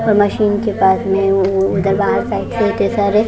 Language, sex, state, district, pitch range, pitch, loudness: Hindi, female, Maharashtra, Washim, 195-210 Hz, 200 Hz, -15 LUFS